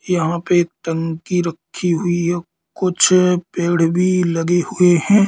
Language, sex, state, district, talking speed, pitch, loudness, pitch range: Hindi, male, Madhya Pradesh, Katni, 145 wpm, 175 Hz, -17 LUFS, 170-180 Hz